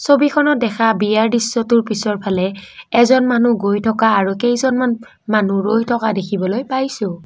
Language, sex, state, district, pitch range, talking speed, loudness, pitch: Assamese, female, Assam, Kamrup Metropolitan, 205-240 Hz, 130 wpm, -16 LUFS, 225 Hz